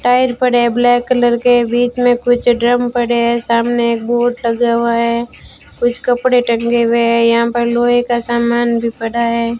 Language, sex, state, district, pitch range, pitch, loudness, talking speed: Hindi, female, Rajasthan, Bikaner, 235-245 Hz, 240 Hz, -14 LUFS, 195 wpm